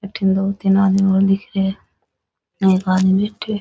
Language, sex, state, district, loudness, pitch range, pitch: Rajasthani, female, Rajasthan, Nagaur, -17 LUFS, 190-195 Hz, 195 Hz